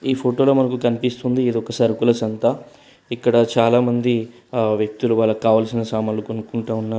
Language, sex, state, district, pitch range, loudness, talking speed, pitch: Telugu, male, Telangana, Hyderabad, 110-120 Hz, -19 LUFS, 145 wpm, 115 Hz